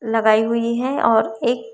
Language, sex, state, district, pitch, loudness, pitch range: Hindi, female, Maharashtra, Chandrapur, 230 Hz, -18 LUFS, 225-240 Hz